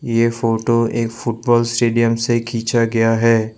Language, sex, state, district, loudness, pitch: Hindi, male, Assam, Sonitpur, -17 LUFS, 115 Hz